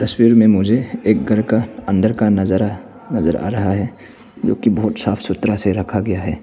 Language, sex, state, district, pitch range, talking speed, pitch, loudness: Hindi, male, Arunachal Pradesh, Papum Pare, 100-110 Hz, 205 wpm, 105 Hz, -17 LUFS